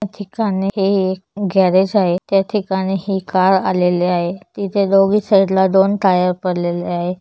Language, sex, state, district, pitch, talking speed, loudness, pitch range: Marathi, female, Maharashtra, Chandrapur, 190 Hz, 165 wpm, -16 LUFS, 185-200 Hz